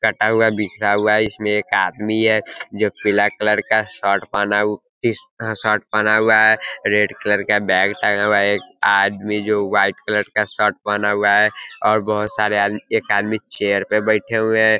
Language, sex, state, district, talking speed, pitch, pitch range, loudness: Hindi, male, Bihar, Sitamarhi, 200 wpm, 105 Hz, 105-110 Hz, -17 LUFS